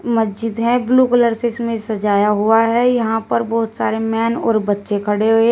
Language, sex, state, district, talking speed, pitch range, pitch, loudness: Hindi, female, Uttar Pradesh, Shamli, 205 wpm, 215-235 Hz, 225 Hz, -17 LUFS